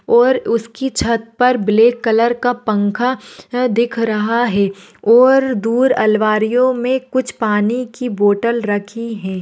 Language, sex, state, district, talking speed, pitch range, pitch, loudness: Hindi, female, Maharashtra, Pune, 135 wpm, 215-250 Hz, 235 Hz, -15 LUFS